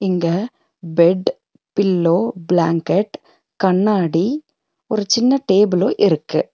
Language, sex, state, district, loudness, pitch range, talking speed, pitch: Tamil, female, Tamil Nadu, Nilgiris, -17 LUFS, 175-235 Hz, 90 wpm, 195 Hz